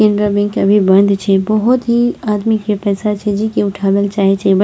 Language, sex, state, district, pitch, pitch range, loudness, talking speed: Maithili, female, Bihar, Purnia, 205 Hz, 200-215 Hz, -14 LUFS, 235 wpm